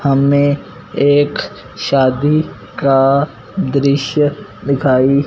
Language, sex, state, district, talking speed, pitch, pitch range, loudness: Hindi, male, Punjab, Fazilka, 70 wpm, 140 Hz, 135-145 Hz, -14 LUFS